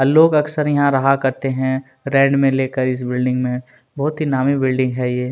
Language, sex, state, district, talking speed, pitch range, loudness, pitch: Hindi, male, Chhattisgarh, Kabirdham, 225 wpm, 130-140 Hz, -18 LUFS, 135 Hz